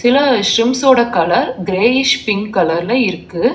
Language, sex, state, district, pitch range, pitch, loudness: Tamil, female, Tamil Nadu, Chennai, 190-255 Hz, 235 Hz, -14 LUFS